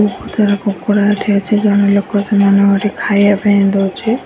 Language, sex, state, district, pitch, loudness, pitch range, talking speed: Odia, female, Odisha, Nuapada, 205 Hz, -13 LUFS, 200-210 Hz, 170 wpm